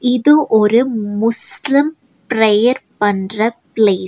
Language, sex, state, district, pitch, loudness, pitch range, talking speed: Tamil, female, Tamil Nadu, Nilgiris, 225 Hz, -15 LUFS, 210-255 Hz, 105 wpm